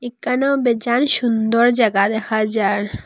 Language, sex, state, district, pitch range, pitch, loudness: Bengali, female, Assam, Hailakandi, 220-245 Hz, 230 Hz, -17 LUFS